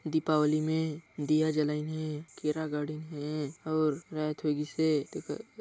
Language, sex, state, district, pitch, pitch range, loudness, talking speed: Chhattisgarhi, male, Chhattisgarh, Sarguja, 155 Hz, 150-155 Hz, -32 LUFS, 160 wpm